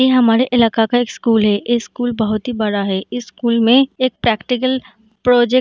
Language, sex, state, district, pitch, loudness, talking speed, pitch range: Hindi, female, Bihar, Darbhanga, 240 Hz, -16 LUFS, 215 wpm, 220-250 Hz